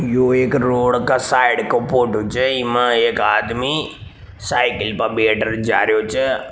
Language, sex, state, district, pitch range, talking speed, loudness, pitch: Marwari, male, Rajasthan, Nagaur, 110-130 Hz, 165 wpm, -17 LUFS, 120 Hz